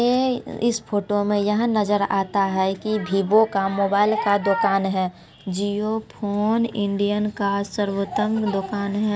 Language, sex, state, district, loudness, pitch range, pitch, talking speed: Maithili, female, Bihar, Supaul, -22 LUFS, 195-215 Hz, 205 Hz, 145 wpm